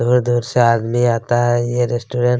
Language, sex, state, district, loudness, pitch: Hindi, male, Chhattisgarh, Kabirdham, -17 LUFS, 120 Hz